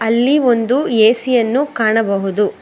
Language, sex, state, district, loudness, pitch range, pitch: Kannada, female, Karnataka, Bangalore, -14 LUFS, 220-255 Hz, 230 Hz